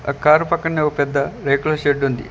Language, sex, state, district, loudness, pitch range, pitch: Telugu, male, Telangana, Mahabubabad, -18 LUFS, 140-155 Hz, 145 Hz